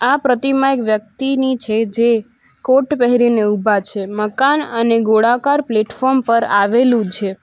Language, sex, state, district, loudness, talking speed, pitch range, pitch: Gujarati, female, Gujarat, Valsad, -15 LUFS, 135 wpm, 215-265 Hz, 235 Hz